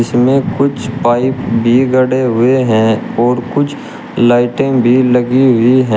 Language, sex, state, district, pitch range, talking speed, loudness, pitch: Hindi, male, Uttar Pradesh, Shamli, 120-130 Hz, 140 wpm, -12 LUFS, 125 Hz